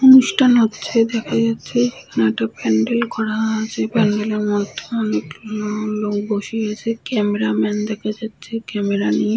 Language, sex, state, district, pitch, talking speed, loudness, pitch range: Bengali, female, West Bengal, Purulia, 215 Hz, 160 wpm, -19 LUFS, 205-230 Hz